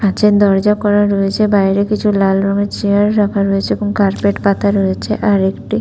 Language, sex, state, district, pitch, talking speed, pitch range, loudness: Bengali, female, West Bengal, Paschim Medinipur, 200 Hz, 175 wpm, 195-205 Hz, -14 LUFS